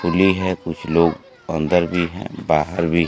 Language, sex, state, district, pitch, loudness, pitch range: Hindi, male, Bihar, Kaimur, 85 Hz, -20 LUFS, 80-90 Hz